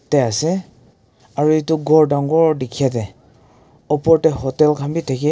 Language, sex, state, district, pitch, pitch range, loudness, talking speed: Nagamese, male, Nagaland, Kohima, 145 Hz, 130-155 Hz, -17 LUFS, 160 wpm